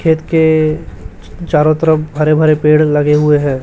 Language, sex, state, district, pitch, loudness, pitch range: Hindi, male, Chhattisgarh, Raipur, 155 Hz, -12 LUFS, 150-155 Hz